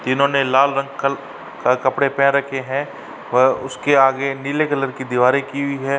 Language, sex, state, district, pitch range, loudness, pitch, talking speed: Hindi, male, Uttar Pradesh, Varanasi, 130-140 Hz, -18 LUFS, 140 Hz, 190 wpm